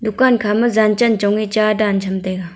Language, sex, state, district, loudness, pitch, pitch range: Wancho, female, Arunachal Pradesh, Longding, -16 LUFS, 215 Hz, 200-225 Hz